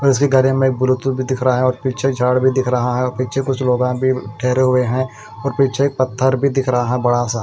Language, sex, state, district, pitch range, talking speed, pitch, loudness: Hindi, male, Punjab, Kapurthala, 125-135 Hz, 265 wpm, 130 Hz, -17 LUFS